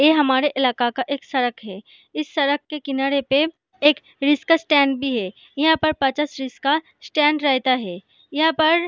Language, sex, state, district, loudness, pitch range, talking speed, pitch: Hindi, female, Jharkhand, Sahebganj, -20 LUFS, 260-305 Hz, 175 wpm, 285 Hz